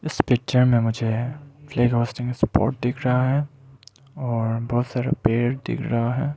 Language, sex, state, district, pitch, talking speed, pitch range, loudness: Hindi, male, Arunachal Pradesh, Lower Dibang Valley, 125 Hz, 140 wpm, 115-135 Hz, -23 LUFS